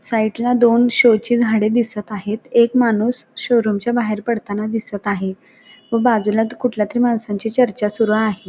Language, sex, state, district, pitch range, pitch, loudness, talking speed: Marathi, female, Maharashtra, Solapur, 210-240 Hz, 225 Hz, -18 LUFS, 170 wpm